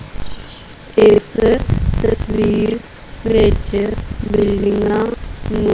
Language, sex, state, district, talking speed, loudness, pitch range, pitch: Punjabi, female, Punjab, Kapurthala, 50 wpm, -16 LUFS, 210-225 Hz, 215 Hz